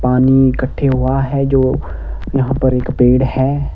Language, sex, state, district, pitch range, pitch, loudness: Hindi, male, Himachal Pradesh, Shimla, 125-135 Hz, 130 Hz, -14 LUFS